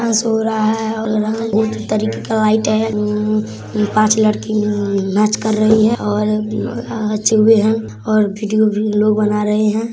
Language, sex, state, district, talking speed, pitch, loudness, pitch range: Hindi, female, Bihar, Samastipur, 180 wpm, 215 Hz, -16 LUFS, 210-220 Hz